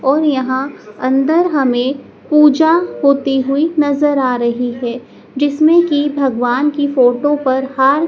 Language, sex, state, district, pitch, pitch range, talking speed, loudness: Hindi, male, Madhya Pradesh, Dhar, 275 Hz, 260-295 Hz, 135 wpm, -14 LUFS